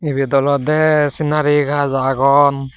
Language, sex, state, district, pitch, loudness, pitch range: Chakma, male, Tripura, Dhalai, 145 Hz, -15 LUFS, 135-150 Hz